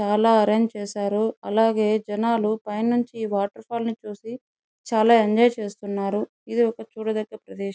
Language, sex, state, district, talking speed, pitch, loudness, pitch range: Telugu, female, Andhra Pradesh, Chittoor, 130 wpm, 220 Hz, -23 LUFS, 210-225 Hz